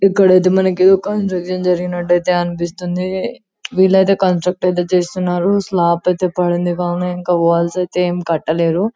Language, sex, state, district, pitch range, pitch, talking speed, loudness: Telugu, female, Telangana, Karimnagar, 175-185 Hz, 180 Hz, 135 wpm, -16 LUFS